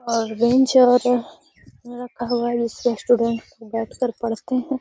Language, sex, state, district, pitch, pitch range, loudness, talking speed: Magahi, female, Bihar, Gaya, 240 Hz, 230-245 Hz, -20 LUFS, 125 wpm